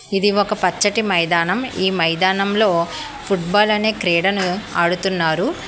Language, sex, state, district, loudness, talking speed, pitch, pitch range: Telugu, female, Telangana, Hyderabad, -18 LUFS, 125 wpm, 190 Hz, 175-205 Hz